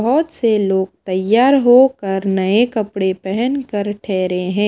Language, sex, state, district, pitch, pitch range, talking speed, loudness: Hindi, female, Himachal Pradesh, Shimla, 205 Hz, 190-240 Hz, 140 wpm, -16 LUFS